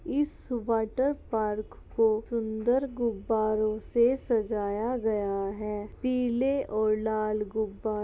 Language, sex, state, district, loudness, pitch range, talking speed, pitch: Hindi, female, Uttar Pradesh, Jalaun, -29 LUFS, 215-245 Hz, 120 wpm, 220 Hz